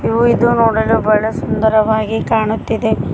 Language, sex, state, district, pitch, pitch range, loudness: Kannada, female, Karnataka, Koppal, 220 Hz, 215-225 Hz, -14 LUFS